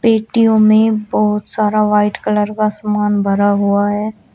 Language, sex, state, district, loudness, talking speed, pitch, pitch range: Hindi, female, Uttar Pradesh, Shamli, -14 LUFS, 150 wpm, 210 Hz, 205-215 Hz